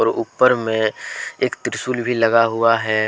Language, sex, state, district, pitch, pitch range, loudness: Hindi, male, Jharkhand, Deoghar, 115 Hz, 110-120 Hz, -18 LUFS